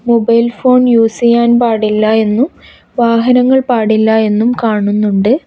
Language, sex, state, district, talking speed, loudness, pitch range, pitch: Malayalam, female, Kerala, Kasaragod, 110 wpm, -11 LUFS, 220-245 Hz, 230 Hz